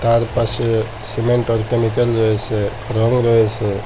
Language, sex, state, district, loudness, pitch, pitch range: Bengali, male, Assam, Hailakandi, -16 LUFS, 115 Hz, 110-115 Hz